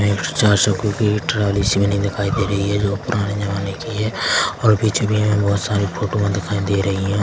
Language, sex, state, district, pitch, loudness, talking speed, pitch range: Hindi, male, Chhattisgarh, Korba, 100 Hz, -18 LUFS, 250 wpm, 100-105 Hz